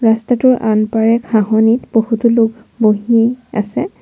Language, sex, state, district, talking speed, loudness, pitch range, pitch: Assamese, female, Assam, Kamrup Metropolitan, 105 wpm, -14 LUFS, 220-235 Hz, 225 Hz